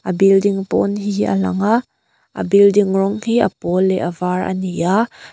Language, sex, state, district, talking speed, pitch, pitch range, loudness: Mizo, female, Mizoram, Aizawl, 200 wpm, 195 Hz, 185-205 Hz, -17 LUFS